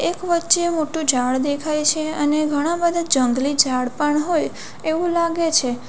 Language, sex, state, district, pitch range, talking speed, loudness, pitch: Gujarati, female, Gujarat, Valsad, 285-335 Hz, 165 wpm, -19 LUFS, 305 Hz